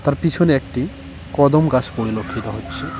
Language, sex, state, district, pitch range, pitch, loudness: Bengali, male, West Bengal, Cooch Behar, 105-145 Hz, 120 Hz, -19 LUFS